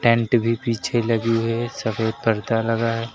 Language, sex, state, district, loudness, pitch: Hindi, male, Uttar Pradesh, Lucknow, -22 LUFS, 115 Hz